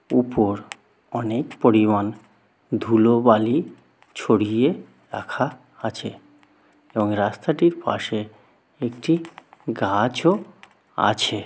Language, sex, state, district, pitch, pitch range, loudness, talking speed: Bengali, male, West Bengal, Jalpaiguri, 115 Hz, 105-130 Hz, -22 LUFS, 70 wpm